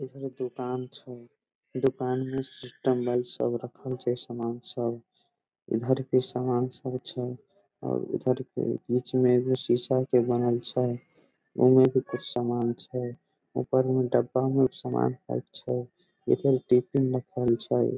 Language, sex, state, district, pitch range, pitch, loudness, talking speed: Maithili, male, Bihar, Samastipur, 120-130 Hz, 125 Hz, -28 LUFS, 145 wpm